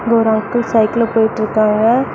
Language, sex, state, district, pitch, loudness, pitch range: Tamil, female, Tamil Nadu, Namakkal, 225 Hz, -14 LUFS, 220-235 Hz